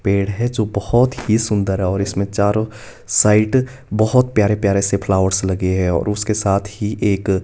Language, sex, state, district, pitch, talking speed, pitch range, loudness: Hindi, male, Himachal Pradesh, Shimla, 105 Hz, 185 wpm, 100-110 Hz, -17 LUFS